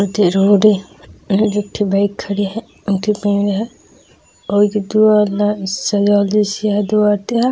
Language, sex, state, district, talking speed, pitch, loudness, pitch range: Chhattisgarhi, female, Chhattisgarh, Raigarh, 160 wpm, 205 Hz, -15 LUFS, 200-210 Hz